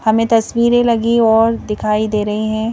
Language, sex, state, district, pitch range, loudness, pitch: Hindi, female, Madhya Pradesh, Bhopal, 215-230 Hz, -15 LUFS, 225 Hz